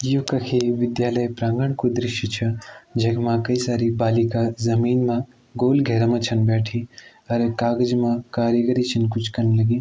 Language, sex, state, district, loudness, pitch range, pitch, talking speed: Garhwali, male, Uttarakhand, Tehri Garhwal, -21 LUFS, 115-125 Hz, 120 Hz, 165 wpm